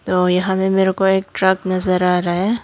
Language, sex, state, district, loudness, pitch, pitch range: Hindi, female, Tripura, Dhalai, -17 LUFS, 190 Hz, 180-190 Hz